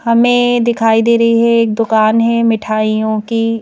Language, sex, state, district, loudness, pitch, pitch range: Hindi, female, Madhya Pradesh, Bhopal, -12 LUFS, 230 Hz, 220-235 Hz